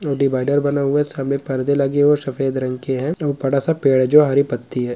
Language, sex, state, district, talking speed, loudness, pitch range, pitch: Hindi, female, Bihar, Purnia, 265 wpm, -18 LUFS, 135-145 Hz, 140 Hz